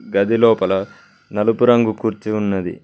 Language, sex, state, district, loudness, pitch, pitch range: Telugu, male, Telangana, Mahabubabad, -17 LUFS, 110 Hz, 95-115 Hz